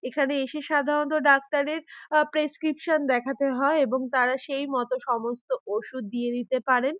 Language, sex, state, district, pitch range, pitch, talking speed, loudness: Bengali, female, West Bengal, Dakshin Dinajpur, 255-300 Hz, 275 Hz, 145 wpm, -25 LUFS